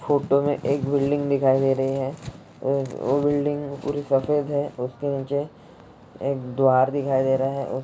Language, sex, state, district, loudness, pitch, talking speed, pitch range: Hindi, male, Bihar, Jahanabad, -23 LUFS, 140 Hz, 175 wpm, 135-145 Hz